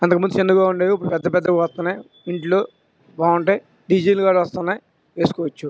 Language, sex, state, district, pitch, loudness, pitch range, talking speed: Telugu, male, Andhra Pradesh, Krishna, 180 Hz, -19 LUFS, 170-190 Hz, 145 wpm